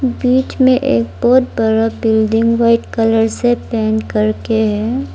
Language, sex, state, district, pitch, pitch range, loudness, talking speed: Hindi, female, Arunachal Pradesh, Lower Dibang Valley, 225 Hz, 220-245 Hz, -14 LUFS, 140 wpm